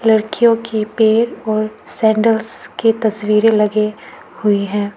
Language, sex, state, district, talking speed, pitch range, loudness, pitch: Hindi, female, Arunachal Pradesh, Lower Dibang Valley, 120 wpm, 215-225 Hz, -16 LUFS, 220 Hz